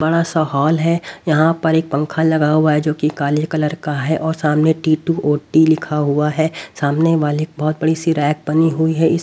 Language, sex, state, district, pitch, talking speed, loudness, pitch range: Hindi, male, Haryana, Rohtak, 155 Hz, 235 wpm, -17 LUFS, 150-160 Hz